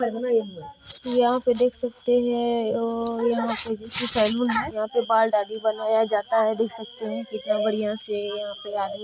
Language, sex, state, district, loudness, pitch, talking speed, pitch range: Hindi, female, Bihar, Purnia, -24 LUFS, 225 Hz, 180 wpm, 215-240 Hz